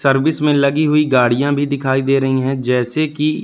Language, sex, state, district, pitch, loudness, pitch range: Hindi, male, Madhya Pradesh, Katni, 140 Hz, -16 LUFS, 130-150 Hz